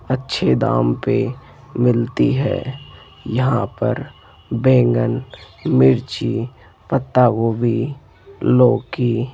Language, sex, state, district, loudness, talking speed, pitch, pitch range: Hindi, male, Rajasthan, Jaipur, -18 LUFS, 85 wpm, 120 Hz, 100-130 Hz